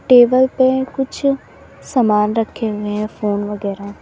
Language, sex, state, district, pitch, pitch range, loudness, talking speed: Hindi, female, Uttar Pradesh, Lalitpur, 225 Hz, 210-260 Hz, -17 LUFS, 135 wpm